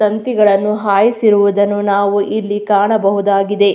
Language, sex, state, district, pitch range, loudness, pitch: Kannada, female, Karnataka, Mysore, 200-210 Hz, -13 LUFS, 205 Hz